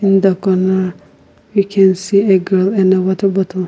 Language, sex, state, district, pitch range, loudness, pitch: English, female, Nagaland, Kohima, 185-195 Hz, -14 LUFS, 190 Hz